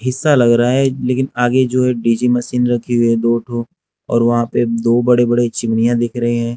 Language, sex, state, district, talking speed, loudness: Hindi, male, Haryana, Jhajjar, 230 wpm, -15 LUFS